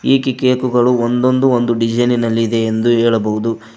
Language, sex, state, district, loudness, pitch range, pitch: Kannada, male, Karnataka, Koppal, -15 LUFS, 115-125 Hz, 120 Hz